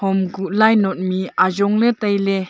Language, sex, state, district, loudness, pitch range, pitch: Wancho, female, Arunachal Pradesh, Longding, -17 LUFS, 190-210 Hz, 195 Hz